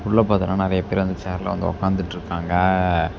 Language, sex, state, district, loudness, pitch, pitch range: Tamil, male, Tamil Nadu, Namakkal, -21 LUFS, 95 Hz, 90-95 Hz